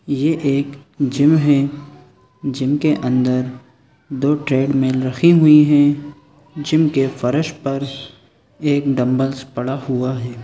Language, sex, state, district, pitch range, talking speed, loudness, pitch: Hindi, male, Chhattisgarh, Sukma, 130-145 Hz, 120 wpm, -17 LUFS, 140 Hz